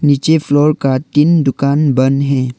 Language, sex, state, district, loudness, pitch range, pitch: Hindi, male, Arunachal Pradesh, Longding, -13 LUFS, 135-150 Hz, 140 Hz